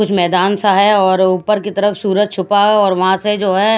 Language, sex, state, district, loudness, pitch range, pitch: Hindi, female, Odisha, Khordha, -13 LUFS, 190-210 Hz, 200 Hz